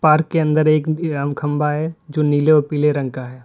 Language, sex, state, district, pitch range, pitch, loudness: Hindi, male, Uttar Pradesh, Lalitpur, 145-155 Hz, 150 Hz, -18 LUFS